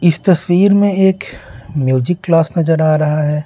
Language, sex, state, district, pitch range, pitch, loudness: Hindi, male, Bihar, Patna, 150-185 Hz, 165 Hz, -13 LUFS